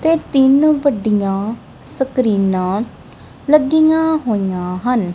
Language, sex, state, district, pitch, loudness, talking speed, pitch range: Punjabi, female, Punjab, Kapurthala, 250 Hz, -15 LUFS, 80 wpm, 195-300 Hz